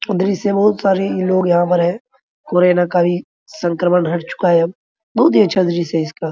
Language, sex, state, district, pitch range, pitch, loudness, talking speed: Hindi, male, Bihar, Araria, 175-195 Hz, 180 Hz, -16 LUFS, 170 wpm